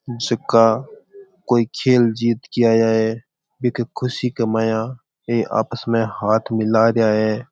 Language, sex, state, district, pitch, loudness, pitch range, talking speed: Rajasthani, male, Rajasthan, Churu, 115 Hz, -19 LUFS, 110-125 Hz, 135 wpm